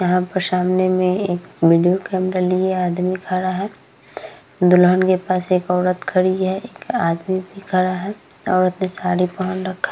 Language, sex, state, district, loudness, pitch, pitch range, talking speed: Hindi, female, Bihar, Vaishali, -19 LUFS, 185 Hz, 180-185 Hz, 180 wpm